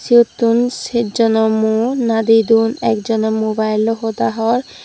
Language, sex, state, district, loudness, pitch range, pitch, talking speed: Chakma, female, Tripura, Dhalai, -15 LUFS, 220-235 Hz, 225 Hz, 100 wpm